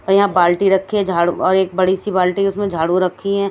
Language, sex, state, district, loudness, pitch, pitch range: Hindi, female, Himachal Pradesh, Shimla, -16 LUFS, 190 Hz, 180-200 Hz